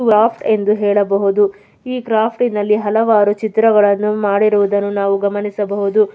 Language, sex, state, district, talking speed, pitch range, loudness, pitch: Kannada, female, Karnataka, Belgaum, 105 wpm, 205-220 Hz, -15 LUFS, 210 Hz